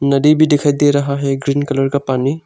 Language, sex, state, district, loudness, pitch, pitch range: Hindi, male, Arunachal Pradesh, Longding, -15 LUFS, 140 Hz, 140-145 Hz